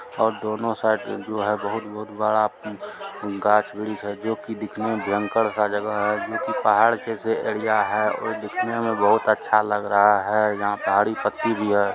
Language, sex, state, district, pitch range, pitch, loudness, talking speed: Hindi, male, Bihar, Supaul, 105-110 Hz, 105 Hz, -23 LUFS, 200 wpm